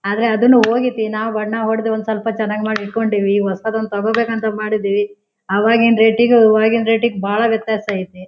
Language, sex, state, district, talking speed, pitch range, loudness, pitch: Kannada, female, Karnataka, Shimoga, 190 wpm, 205-225 Hz, -16 LUFS, 220 Hz